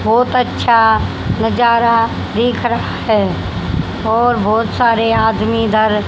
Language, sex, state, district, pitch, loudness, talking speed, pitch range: Hindi, female, Haryana, Rohtak, 225 Hz, -14 LUFS, 110 wpm, 220-235 Hz